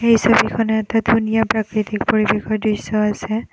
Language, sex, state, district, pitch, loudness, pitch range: Assamese, female, Assam, Kamrup Metropolitan, 220 Hz, -18 LUFS, 215-225 Hz